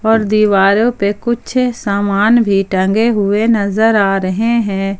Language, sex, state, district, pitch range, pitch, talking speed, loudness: Hindi, female, Jharkhand, Palamu, 200-230 Hz, 210 Hz, 145 wpm, -13 LUFS